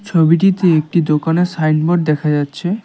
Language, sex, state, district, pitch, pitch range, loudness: Bengali, male, West Bengal, Cooch Behar, 165 Hz, 155-175 Hz, -15 LUFS